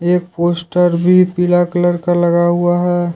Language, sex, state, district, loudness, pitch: Hindi, male, Jharkhand, Deoghar, -14 LUFS, 175 Hz